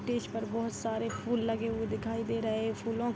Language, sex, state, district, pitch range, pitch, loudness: Hindi, female, Bihar, Darbhanga, 225-230 Hz, 225 Hz, -34 LUFS